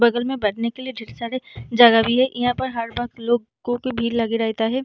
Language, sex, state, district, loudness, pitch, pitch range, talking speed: Hindi, female, Bihar, Vaishali, -21 LUFS, 240 Hz, 230-250 Hz, 260 wpm